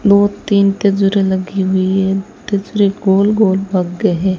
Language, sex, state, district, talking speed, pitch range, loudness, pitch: Hindi, female, Rajasthan, Bikaner, 165 wpm, 190-200 Hz, -14 LUFS, 195 Hz